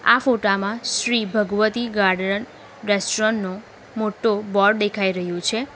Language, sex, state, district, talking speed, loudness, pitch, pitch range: Gujarati, female, Gujarat, Valsad, 135 wpm, -21 LUFS, 210 Hz, 200-225 Hz